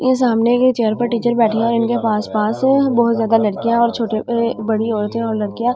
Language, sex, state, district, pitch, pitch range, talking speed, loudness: Hindi, female, Delhi, New Delhi, 230 Hz, 220-240 Hz, 220 wpm, -17 LUFS